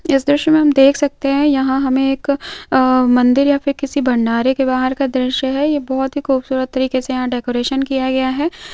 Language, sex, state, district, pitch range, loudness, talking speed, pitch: Hindi, female, Andhra Pradesh, Krishna, 260-280 Hz, -16 LUFS, 215 wpm, 270 Hz